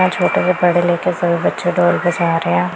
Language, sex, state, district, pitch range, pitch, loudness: Hindi, female, Punjab, Pathankot, 170-180 Hz, 175 Hz, -16 LUFS